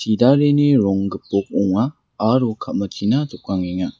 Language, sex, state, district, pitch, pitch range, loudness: Garo, male, Meghalaya, West Garo Hills, 110 Hz, 100-130 Hz, -19 LUFS